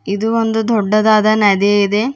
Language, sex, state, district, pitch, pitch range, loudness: Kannada, female, Karnataka, Bidar, 215 Hz, 205-220 Hz, -13 LUFS